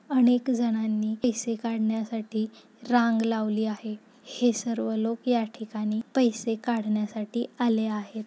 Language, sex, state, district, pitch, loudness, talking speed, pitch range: Marathi, female, Maharashtra, Nagpur, 225 Hz, -27 LUFS, 115 wpm, 220-235 Hz